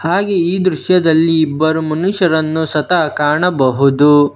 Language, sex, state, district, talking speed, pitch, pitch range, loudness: Kannada, male, Karnataka, Bangalore, 95 wpm, 160 Hz, 150-180 Hz, -13 LUFS